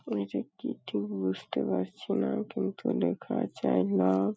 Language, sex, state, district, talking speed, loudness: Bengali, female, West Bengal, Paschim Medinipur, 165 wpm, -31 LUFS